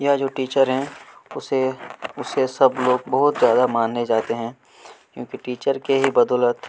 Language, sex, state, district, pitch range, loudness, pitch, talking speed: Hindi, male, Chhattisgarh, Kabirdham, 120-135 Hz, -20 LUFS, 130 Hz, 160 wpm